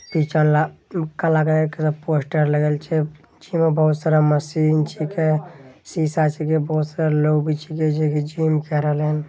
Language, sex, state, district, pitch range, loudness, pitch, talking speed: Angika, male, Bihar, Begusarai, 150-155 Hz, -20 LUFS, 155 Hz, 175 wpm